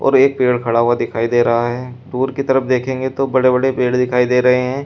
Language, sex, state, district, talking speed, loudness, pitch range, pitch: Hindi, male, Uttar Pradesh, Shamli, 260 wpm, -16 LUFS, 125-130 Hz, 125 Hz